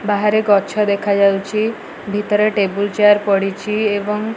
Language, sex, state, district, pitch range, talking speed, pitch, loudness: Odia, female, Odisha, Malkangiri, 200-210 Hz, 125 wpm, 205 Hz, -16 LUFS